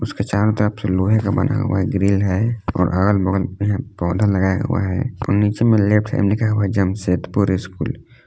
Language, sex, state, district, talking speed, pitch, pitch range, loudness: Hindi, male, Jharkhand, Palamu, 210 wpm, 100 Hz, 95-105 Hz, -19 LUFS